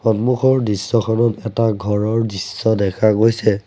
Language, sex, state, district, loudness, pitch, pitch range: Assamese, male, Assam, Sonitpur, -17 LUFS, 110 Hz, 105-115 Hz